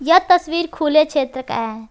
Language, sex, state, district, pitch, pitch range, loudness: Hindi, female, Jharkhand, Garhwa, 305 Hz, 260-340 Hz, -17 LUFS